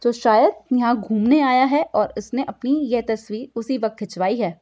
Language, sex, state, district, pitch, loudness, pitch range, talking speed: Hindi, female, Uttar Pradesh, Budaun, 235 Hz, -20 LUFS, 215-260 Hz, 195 wpm